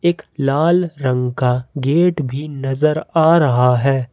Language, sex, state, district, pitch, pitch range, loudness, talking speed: Hindi, male, Jharkhand, Ranchi, 140 Hz, 130-160 Hz, -17 LUFS, 130 wpm